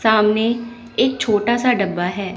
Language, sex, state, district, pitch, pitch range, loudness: Hindi, male, Chandigarh, Chandigarh, 225 Hz, 205-235 Hz, -18 LUFS